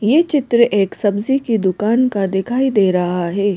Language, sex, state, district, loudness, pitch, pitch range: Hindi, female, Madhya Pradesh, Bhopal, -16 LUFS, 205 Hz, 195-250 Hz